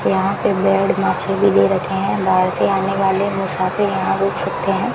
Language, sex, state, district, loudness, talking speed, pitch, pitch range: Hindi, female, Rajasthan, Bikaner, -17 LUFS, 195 wpm, 190 Hz, 180-195 Hz